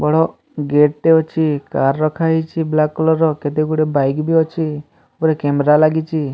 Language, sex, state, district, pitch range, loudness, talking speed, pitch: Odia, male, Odisha, Sambalpur, 150-160 Hz, -16 LUFS, 150 wpm, 155 Hz